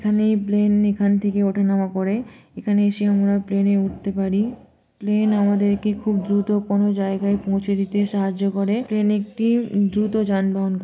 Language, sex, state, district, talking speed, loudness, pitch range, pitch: Bengali, female, West Bengal, Malda, 150 wpm, -20 LUFS, 195-210 Hz, 205 Hz